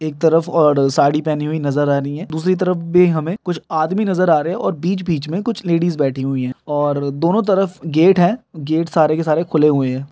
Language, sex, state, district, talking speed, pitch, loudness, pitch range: Hindi, male, Bihar, Muzaffarpur, 235 wpm, 160 Hz, -17 LUFS, 145-175 Hz